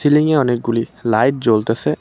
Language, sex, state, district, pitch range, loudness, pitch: Bengali, male, West Bengal, Cooch Behar, 115-140 Hz, -16 LUFS, 120 Hz